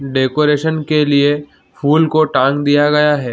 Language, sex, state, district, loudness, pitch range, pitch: Hindi, male, Chhattisgarh, Bilaspur, -14 LUFS, 140-150 Hz, 145 Hz